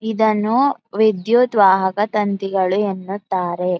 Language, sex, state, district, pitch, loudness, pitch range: Kannada, female, Karnataka, Mysore, 205 Hz, -18 LUFS, 190-220 Hz